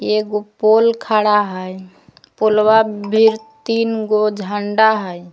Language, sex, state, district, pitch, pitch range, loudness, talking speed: Magahi, female, Jharkhand, Palamu, 215 Hz, 205-220 Hz, -16 LUFS, 100 wpm